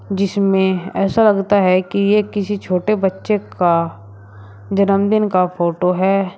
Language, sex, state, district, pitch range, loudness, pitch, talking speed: Hindi, male, Uttar Pradesh, Shamli, 180-200 Hz, -16 LUFS, 195 Hz, 130 wpm